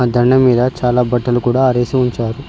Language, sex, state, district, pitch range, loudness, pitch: Telugu, male, Telangana, Mahabubabad, 120-130 Hz, -14 LUFS, 125 Hz